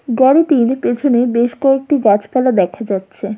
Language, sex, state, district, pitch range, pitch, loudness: Bengali, female, West Bengal, Jalpaiguri, 210-270 Hz, 245 Hz, -14 LUFS